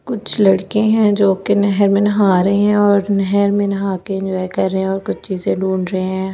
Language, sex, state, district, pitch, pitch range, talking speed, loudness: Hindi, female, Delhi, New Delhi, 195 Hz, 190-205 Hz, 265 wpm, -16 LUFS